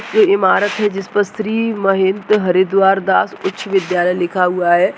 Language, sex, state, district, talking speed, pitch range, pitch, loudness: Hindi, male, Rajasthan, Nagaur, 155 wpm, 185-210 Hz, 195 Hz, -15 LUFS